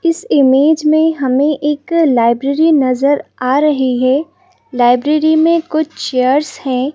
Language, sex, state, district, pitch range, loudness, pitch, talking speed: Hindi, female, Madhya Pradesh, Bhopal, 260-315 Hz, -13 LUFS, 290 Hz, 130 wpm